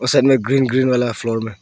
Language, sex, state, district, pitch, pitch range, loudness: Hindi, male, Arunachal Pradesh, Longding, 125 Hz, 115-135 Hz, -17 LUFS